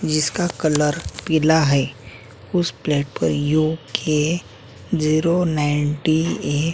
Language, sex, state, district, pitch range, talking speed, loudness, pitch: Hindi, male, Uttarakhand, Tehri Garhwal, 145-160 Hz, 115 wpm, -20 LUFS, 155 Hz